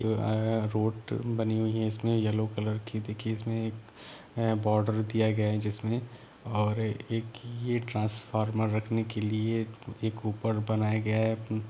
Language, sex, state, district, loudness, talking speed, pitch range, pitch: Hindi, male, Jharkhand, Sahebganj, -30 LUFS, 145 wpm, 110-115 Hz, 110 Hz